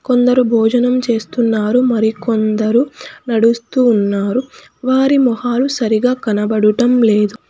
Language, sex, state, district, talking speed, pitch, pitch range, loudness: Telugu, female, Telangana, Hyderabad, 95 wpm, 235 Hz, 220-250 Hz, -14 LUFS